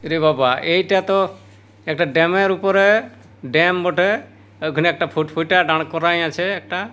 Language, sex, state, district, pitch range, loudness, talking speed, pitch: Bengali, male, West Bengal, Purulia, 155-185 Hz, -18 LUFS, 155 wpm, 165 Hz